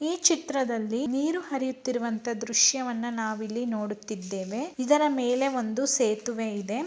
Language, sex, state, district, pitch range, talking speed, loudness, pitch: Kannada, male, Karnataka, Mysore, 225-270 Hz, 120 wpm, -27 LUFS, 240 Hz